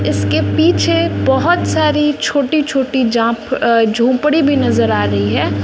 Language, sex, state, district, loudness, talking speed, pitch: Hindi, female, Bihar, West Champaran, -14 LUFS, 150 wpm, 220 Hz